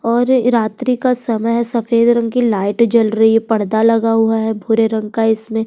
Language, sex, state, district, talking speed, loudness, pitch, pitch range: Hindi, female, Uttar Pradesh, Budaun, 210 wpm, -15 LUFS, 225 Hz, 220-235 Hz